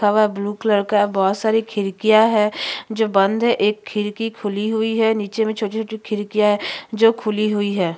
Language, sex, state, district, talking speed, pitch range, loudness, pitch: Hindi, female, Chhattisgarh, Sukma, 190 wpm, 205-220 Hz, -19 LUFS, 215 Hz